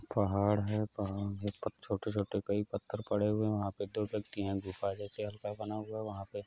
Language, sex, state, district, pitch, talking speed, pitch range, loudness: Hindi, male, Uttar Pradesh, Hamirpur, 100 Hz, 250 wpm, 100-105 Hz, -36 LUFS